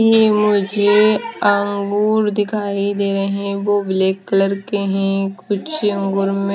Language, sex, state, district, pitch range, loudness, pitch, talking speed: Hindi, female, Himachal Pradesh, Shimla, 195-210 Hz, -17 LUFS, 200 Hz, 130 wpm